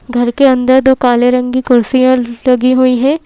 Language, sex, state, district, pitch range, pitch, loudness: Hindi, female, Madhya Pradesh, Bhopal, 245-260 Hz, 255 Hz, -10 LUFS